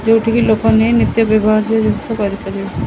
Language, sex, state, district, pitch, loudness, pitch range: Odia, female, Odisha, Khordha, 220 Hz, -14 LUFS, 215-225 Hz